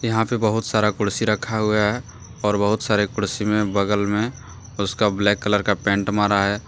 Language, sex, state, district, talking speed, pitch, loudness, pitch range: Hindi, male, Jharkhand, Deoghar, 195 wpm, 105 Hz, -21 LUFS, 100-110 Hz